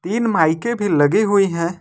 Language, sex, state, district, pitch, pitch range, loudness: Hindi, male, Jharkhand, Ranchi, 200 Hz, 165-215 Hz, -17 LUFS